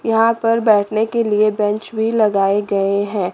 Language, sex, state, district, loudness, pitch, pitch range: Hindi, female, Chandigarh, Chandigarh, -16 LUFS, 215 Hz, 205-225 Hz